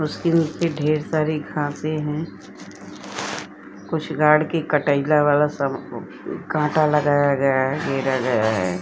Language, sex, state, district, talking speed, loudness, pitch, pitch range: Hindi, female, Uttar Pradesh, Etah, 120 wpm, -21 LUFS, 150 Hz, 140-155 Hz